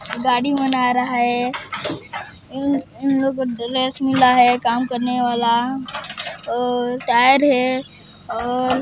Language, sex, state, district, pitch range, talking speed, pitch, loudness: Hindi, male, Chhattisgarh, Sarguja, 245-265 Hz, 110 wpm, 250 Hz, -19 LUFS